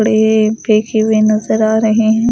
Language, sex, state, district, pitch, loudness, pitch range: Hindi, female, Delhi, New Delhi, 220 Hz, -12 LUFS, 215-220 Hz